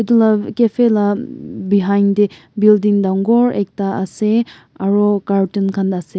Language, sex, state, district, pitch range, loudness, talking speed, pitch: Nagamese, male, Nagaland, Kohima, 195-220 Hz, -15 LUFS, 135 wpm, 205 Hz